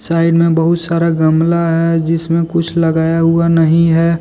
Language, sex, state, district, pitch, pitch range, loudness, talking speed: Hindi, male, Jharkhand, Deoghar, 165 Hz, 165-170 Hz, -13 LUFS, 170 wpm